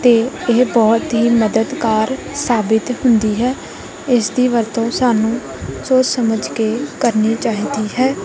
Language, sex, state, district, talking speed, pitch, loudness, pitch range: Punjabi, female, Punjab, Kapurthala, 130 wpm, 235 Hz, -16 LUFS, 220-250 Hz